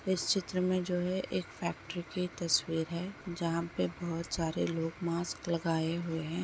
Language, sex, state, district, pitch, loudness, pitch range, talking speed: Hindi, female, Uttar Pradesh, Etah, 170 Hz, -34 LUFS, 165-180 Hz, 175 wpm